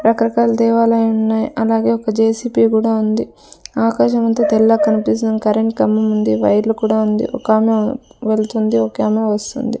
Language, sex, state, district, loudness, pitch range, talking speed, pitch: Telugu, female, Andhra Pradesh, Sri Satya Sai, -15 LUFS, 215-230 Hz, 130 wpm, 220 Hz